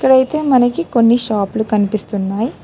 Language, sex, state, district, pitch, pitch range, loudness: Telugu, female, Telangana, Hyderabad, 235 Hz, 210-260 Hz, -15 LUFS